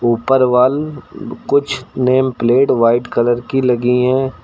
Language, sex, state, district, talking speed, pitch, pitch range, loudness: Hindi, male, Uttar Pradesh, Lucknow, 135 wpm, 125 Hz, 120-130 Hz, -14 LUFS